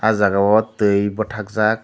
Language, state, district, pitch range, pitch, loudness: Kokborok, Tripura, Dhalai, 100-110 Hz, 105 Hz, -18 LUFS